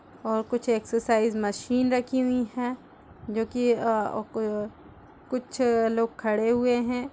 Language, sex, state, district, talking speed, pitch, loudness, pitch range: Hindi, female, Chhattisgarh, Kabirdham, 125 wpm, 230 Hz, -26 LUFS, 220-245 Hz